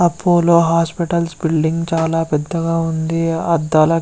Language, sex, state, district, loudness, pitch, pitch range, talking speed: Telugu, male, Andhra Pradesh, Visakhapatnam, -16 LUFS, 165 Hz, 160-170 Hz, 120 wpm